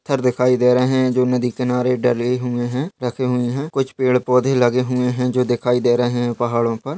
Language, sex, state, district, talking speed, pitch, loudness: Hindi, male, Uttarakhand, Uttarkashi, 225 wpm, 125 Hz, -18 LUFS